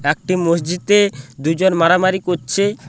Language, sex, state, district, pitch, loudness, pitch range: Bengali, male, West Bengal, Paschim Medinipur, 180 Hz, -16 LUFS, 160-190 Hz